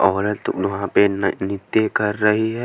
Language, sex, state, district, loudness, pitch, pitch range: Hindi, male, Haryana, Jhajjar, -20 LUFS, 105 Hz, 100-110 Hz